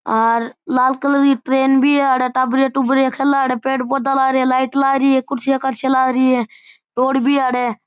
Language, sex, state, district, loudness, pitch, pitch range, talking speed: Marwari, male, Rajasthan, Churu, -16 LUFS, 265 Hz, 255-270 Hz, 205 wpm